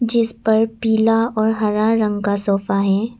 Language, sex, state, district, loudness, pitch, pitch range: Hindi, female, Arunachal Pradesh, Papum Pare, -17 LUFS, 220 Hz, 205-225 Hz